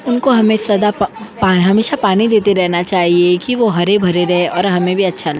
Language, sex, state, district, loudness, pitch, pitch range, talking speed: Hindi, female, Uttar Pradesh, Jyotiba Phule Nagar, -13 LUFS, 195 Hz, 180-220 Hz, 200 wpm